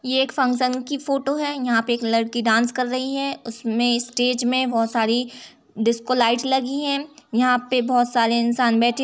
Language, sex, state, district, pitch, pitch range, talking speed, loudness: Hindi, female, Uttar Pradesh, Jalaun, 245 Hz, 235-265 Hz, 200 wpm, -21 LUFS